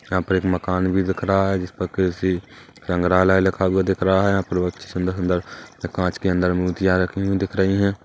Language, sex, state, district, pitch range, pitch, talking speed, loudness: Hindi, male, Chhattisgarh, Kabirdham, 90-95 Hz, 95 Hz, 240 wpm, -21 LUFS